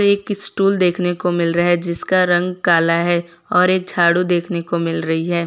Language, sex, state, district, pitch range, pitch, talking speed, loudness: Hindi, female, Gujarat, Valsad, 170-185 Hz, 175 Hz, 210 wpm, -17 LUFS